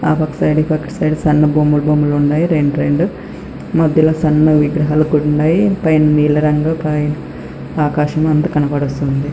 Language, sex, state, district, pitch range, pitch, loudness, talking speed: Telugu, female, Andhra Pradesh, Anantapur, 150-155 Hz, 150 Hz, -14 LUFS, 155 wpm